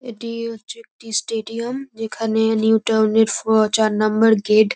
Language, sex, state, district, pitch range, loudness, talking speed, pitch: Bengali, female, West Bengal, North 24 Parganas, 220-230 Hz, -19 LUFS, 165 wpm, 220 Hz